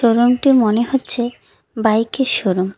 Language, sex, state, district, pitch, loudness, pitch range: Bengali, female, West Bengal, Cooch Behar, 235 Hz, -16 LUFS, 220-250 Hz